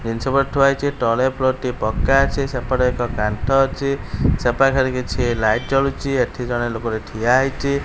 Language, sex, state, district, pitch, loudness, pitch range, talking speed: Odia, male, Odisha, Khordha, 130 Hz, -19 LUFS, 120-135 Hz, 160 wpm